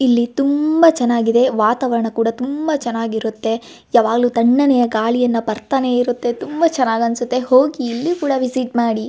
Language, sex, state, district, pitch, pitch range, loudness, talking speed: Kannada, female, Karnataka, Gulbarga, 245 Hz, 230-265 Hz, -17 LUFS, 130 wpm